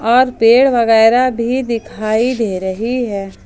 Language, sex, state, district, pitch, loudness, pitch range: Hindi, female, Jharkhand, Ranchi, 230 Hz, -14 LUFS, 220-250 Hz